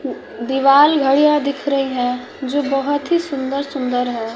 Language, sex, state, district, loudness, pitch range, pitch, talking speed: Hindi, female, Bihar, West Champaran, -17 LUFS, 260-285 Hz, 275 Hz, 140 wpm